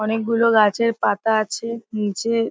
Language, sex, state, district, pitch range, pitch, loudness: Bengali, female, West Bengal, Paschim Medinipur, 215-230 Hz, 225 Hz, -20 LUFS